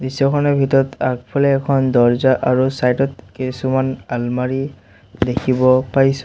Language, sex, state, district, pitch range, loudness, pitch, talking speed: Assamese, male, Assam, Sonitpur, 125-135 Hz, -17 LUFS, 130 Hz, 115 wpm